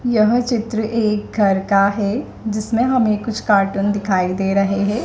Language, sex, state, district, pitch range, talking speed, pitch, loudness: Hindi, female, Madhya Pradesh, Dhar, 200-225 Hz, 165 wpm, 210 Hz, -18 LUFS